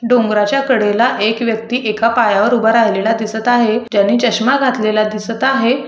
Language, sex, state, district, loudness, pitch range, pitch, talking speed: Marathi, female, Maharashtra, Aurangabad, -14 LUFS, 215-245 Hz, 230 Hz, 155 wpm